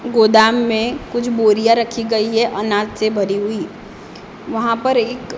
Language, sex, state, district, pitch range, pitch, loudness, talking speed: Hindi, female, Maharashtra, Gondia, 215-240 Hz, 225 Hz, -16 LUFS, 155 wpm